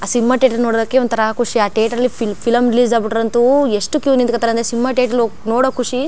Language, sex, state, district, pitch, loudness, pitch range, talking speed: Kannada, female, Karnataka, Chamarajanagar, 240 Hz, -15 LUFS, 225-250 Hz, 205 wpm